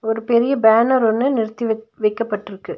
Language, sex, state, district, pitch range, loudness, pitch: Tamil, female, Tamil Nadu, Nilgiris, 220-235 Hz, -18 LUFS, 225 Hz